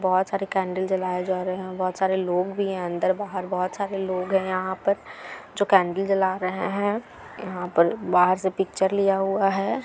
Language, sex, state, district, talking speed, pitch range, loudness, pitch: Hindi, female, Bihar, Gaya, 215 wpm, 185-195 Hz, -24 LUFS, 190 Hz